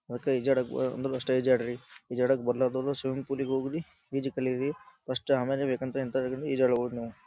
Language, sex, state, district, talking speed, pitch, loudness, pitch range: Kannada, male, Karnataka, Dharwad, 150 wpm, 130 Hz, -30 LUFS, 125-135 Hz